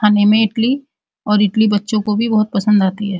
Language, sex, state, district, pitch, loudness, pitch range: Hindi, female, Uttar Pradesh, Muzaffarnagar, 210 Hz, -15 LUFS, 205-220 Hz